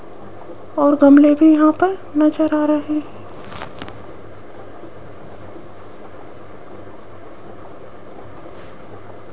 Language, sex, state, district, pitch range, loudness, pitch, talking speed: Hindi, female, Rajasthan, Jaipur, 295-310 Hz, -14 LUFS, 305 Hz, 60 wpm